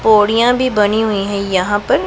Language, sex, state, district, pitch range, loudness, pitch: Hindi, female, Punjab, Pathankot, 205-220 Hz, -14 LUFS, 210 Hz